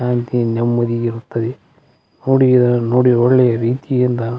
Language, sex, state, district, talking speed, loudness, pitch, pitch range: Kannada, male, Karnataka, Belgaum, 110 wpm, -15 LUFS, 120 Hz, 115-125 Hz